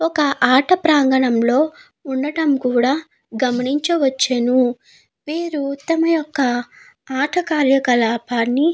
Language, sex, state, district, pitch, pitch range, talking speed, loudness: Telugu, female, Andhra Pradesh, Guntur, 275 Hz, 250-310 Hz, 80 wpm, -18 LUFS